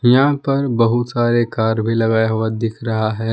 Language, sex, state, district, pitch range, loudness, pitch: Hindi, male, Jharkhand, Palamu, 110-120 Hz, -17 LUFS, 115 Hz